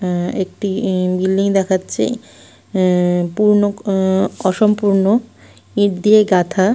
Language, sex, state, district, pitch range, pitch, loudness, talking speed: Bengali, female, West Bengal, Malda, 185-205 Hz, 195 Hz, -16 LUFS, 115 wpm